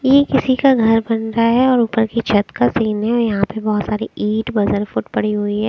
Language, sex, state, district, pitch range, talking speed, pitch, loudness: Hindi, female, Chandigarh, Chandigarh, 210-235 Hz, 230 wpm, 225 Hz, -17 LUFS